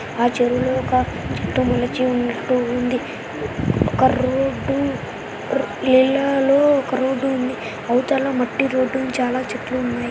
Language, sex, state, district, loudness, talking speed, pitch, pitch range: Telugu, male, Andhra Pradesh, Anantapur, -20 LUFS, 120 wpm, 255 Hz, 240-265 Hz